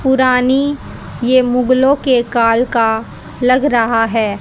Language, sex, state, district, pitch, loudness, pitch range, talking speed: Hindi, female, Haryana, Rohtak, 250 Hz, -13 LUFS, 230-260 Hz, 120 wpm